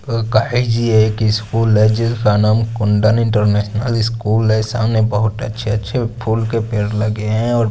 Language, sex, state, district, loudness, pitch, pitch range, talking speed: Hindi, male, Chandigarh, Chandigarh, -16 LUFS, 110 Hz, 110-115 Hz, 170 wpm